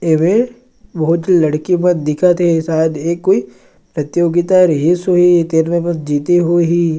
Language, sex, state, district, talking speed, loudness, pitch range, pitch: Chhattisgarhi, male, Chhattisgarh, Sarguja, 155 wpm, -14 LUFS, 160-180 Hz, 170 Hz